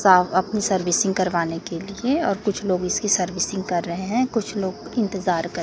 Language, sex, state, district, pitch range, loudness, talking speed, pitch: Hindi, female, Chhattisgarh, Raipur, 180-210 Hz, -22 LUFS, 190 wpm, 190 Hz